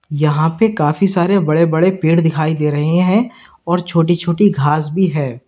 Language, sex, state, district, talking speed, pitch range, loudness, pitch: Hindi, male, Uttar Pradesh, Lalitpur, 185 wpm, 155-185 Hz, -14 LUFS, 165 Hz